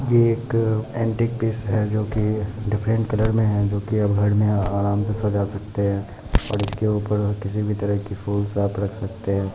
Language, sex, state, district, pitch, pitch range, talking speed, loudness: Hindi, male, Bihar, Muzaffarpur, 105 Hz, 100-110 Hz, 175 wpm, -22 LUFS